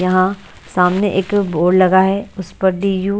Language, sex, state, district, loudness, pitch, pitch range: Hindi, female, Haryana, Charkhi Dadri, -15 LUFS, 190 Hz, 185-195 Hz